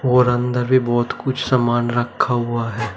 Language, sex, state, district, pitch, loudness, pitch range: Hindi, male, Uttar Pradesh, Saharanpur, 120 Hz, -19 LUFS, 120-125 Hz